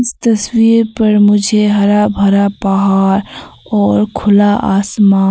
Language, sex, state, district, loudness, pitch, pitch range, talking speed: Hindi, female, Arunachal Pradesh, Papum Pare, -11 LUFS, 205 Hz, 195-215 Hz, 100 wpm